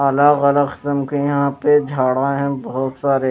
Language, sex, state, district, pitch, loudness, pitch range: Hindi, male, Chhattisgarh, Raipur, 140 Hz, -17 LUFS, 135-145 Hz